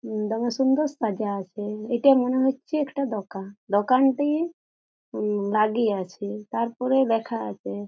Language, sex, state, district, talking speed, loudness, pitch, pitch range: Bengali, female, West Bengal, Jhargram, 130 wpm, -24 LUFS, 225 Hz, 205-265 Hz